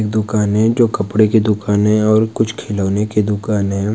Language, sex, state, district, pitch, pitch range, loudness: Hindi, male, Bihar, Saran, 105 Hz, 105-110 Hz, -15 LUFS